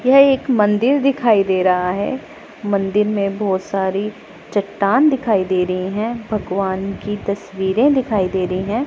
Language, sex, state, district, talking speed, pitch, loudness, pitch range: Hindi, female, Punjab, Pathankot, 155 wpm, 205 Hz, -18 LUFS, 190-235 Hz